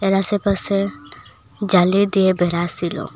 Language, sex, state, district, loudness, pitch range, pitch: Bengali, female, Assam, Hailakandi, -18 LUFS, 175-200 Hz, 195 Hz